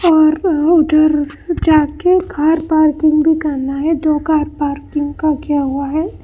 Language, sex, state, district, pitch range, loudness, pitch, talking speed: Hindi, female, Karnataka, Bangalore, 295-320 Hz, -14 LUFS, 310 Hz, 155 wpm